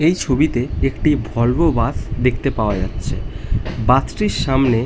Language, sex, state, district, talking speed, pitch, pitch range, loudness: Bengali, male, West Bengal, North 24 Parganas, 135 wpm, 120 Hz, 105-135 Hz, -19 LUFS